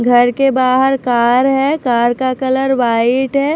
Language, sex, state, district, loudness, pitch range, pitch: Hindi, female, Maharashtra, Washim, -13 LUFS, 245-270 Hz, 260 Hz